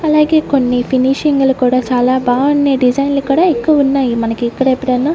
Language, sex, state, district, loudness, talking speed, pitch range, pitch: Telugu, female, Andhra Pradesh, Sri Satya Sai, -13 LUFS, 140 wpm, 250-285 Hz, 265 Hz